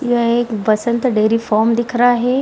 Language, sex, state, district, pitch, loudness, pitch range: Hindi, female, Bihar, Samastipur, 235 Hz, -15 LUFS, 220-245 Hz